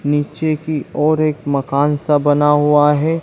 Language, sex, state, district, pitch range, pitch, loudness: Hindi, male, Chhattisgarh, Bilaspur, 145-155 Hz, 150 Hz, -16 LUFS